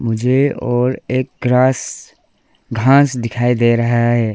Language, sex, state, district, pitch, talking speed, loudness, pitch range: Hindi, female, Arunachal Pradesh, Lower Dibang Valley, 120 Hz, 125 wpm, -15 LUFS, 120-130 Hz